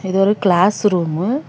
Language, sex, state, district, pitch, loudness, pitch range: Tamil, female, Karnataka, Bangalore, 195 Hz, -16 LUFS, 180-205 Hz